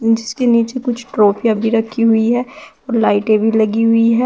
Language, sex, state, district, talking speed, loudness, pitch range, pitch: Hindi, female, Uttar Pradesh, Shamli, 195 wpm, -15 LUFS, 220-235 Hz, 225 Hz